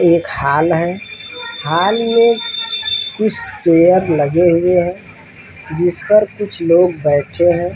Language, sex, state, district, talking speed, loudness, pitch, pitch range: Hindi, male, Rajasthan, Churu, 125 wpm, -14 LUFS, 175 Hz, 165-210 Hz